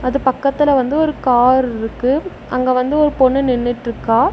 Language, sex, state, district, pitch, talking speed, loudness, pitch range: Tamil, female, Tamil Nadu, Namakkal, 260 Hz, 140 wpm, -16 LUFS, 245-275 Hz